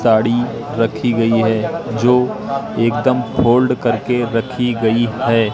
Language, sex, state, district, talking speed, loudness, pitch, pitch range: Hindi, male, Madhya Pradesh, Katni, 120 wpm, -16 LUFS, 120 Hz, 115-125 Hz